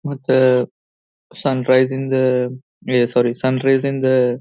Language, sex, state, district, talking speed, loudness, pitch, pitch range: Kannada, male, Karnataka, Belgaum, 110 wpm, -17 LUFS, 130 Hz, 125-135 Hz